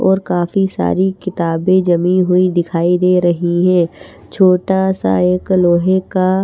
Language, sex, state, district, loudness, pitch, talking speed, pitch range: Hindi, female, Haryana, Charkhi Dadri, -14 LUFS, 180 Hz, 140 wpm, 175-185 Hz